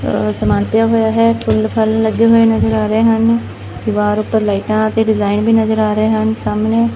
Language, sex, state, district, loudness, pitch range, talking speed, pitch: Punjabi, female, Punjab, Fazilka, -14 LUFS, 210-225 Hz, 215 wpm, 220 Hz